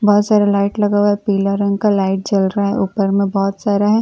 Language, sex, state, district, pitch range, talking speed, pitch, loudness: Hindi, female, Bihar, Katihar, 195-205 Hz, 300 wpm, 200 Hz, -16 LUFS